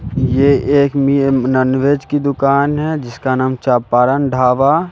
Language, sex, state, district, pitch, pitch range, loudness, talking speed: Hindi, male, Bihar, West Champaran, 135 Hz, 130-140 Hz, -14 LUFS, 135 wpm